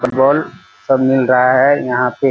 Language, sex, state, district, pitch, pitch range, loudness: Hindi, male, Bihar, Purnia, 130 Hz, 125-135 Hz, -13 LUFS